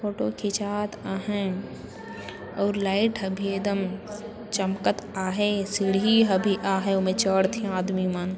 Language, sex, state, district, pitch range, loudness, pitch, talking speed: Chhattisgarhi, female, Chhattisgarh, Sarguja, 190-205 Hz, -26 LUFS, 195 Hz, 135 wpm